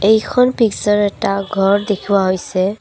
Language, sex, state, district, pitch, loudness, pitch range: Assamese, female, Assam, Kamrup Metropolitan, 205 Hz, -16 LUFS, 195-215 Hz